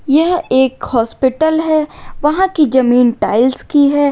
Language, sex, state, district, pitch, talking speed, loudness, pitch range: Hindi, female, Uttar Pradesh, Lalitpur, 285 Hz, 145 wpm, -13 LUFS, 250-315 Hz